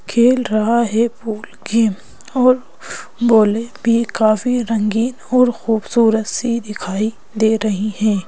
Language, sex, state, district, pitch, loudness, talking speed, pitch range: Hindi, female, Madhya Pradesh, Bhopal, 225 Hz, -17 LUFS, 125 wpm, 215-235 Hz